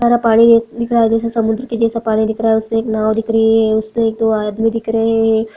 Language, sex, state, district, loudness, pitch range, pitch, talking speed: Hindi, female, Bihar, Araria, -14 LUFS, 220-230 Hz, 225 Hz, 270 wpm